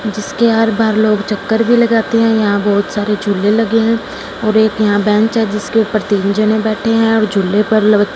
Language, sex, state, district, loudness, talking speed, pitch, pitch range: Hindi, female, Punjab, Fazilka, -13 LUFS, 215 wpm, 215 Hz, 205-225 Hz